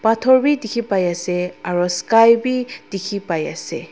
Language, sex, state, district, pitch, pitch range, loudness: Nagamese, female, Nagaland, Dimapur, 200 Hz, 180-235 Hz, -18 LUFS